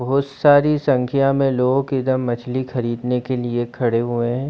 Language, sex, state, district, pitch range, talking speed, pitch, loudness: Hindi, female, Chhattisgarh, Bilaspur, 120-135 Hz, 175 wpm, 130 Hz, -19 LUFS